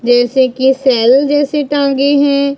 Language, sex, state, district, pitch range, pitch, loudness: Hindi, female, Punjab, Pathankot, 260-285 Hz, 275 Hz, -11 LUFS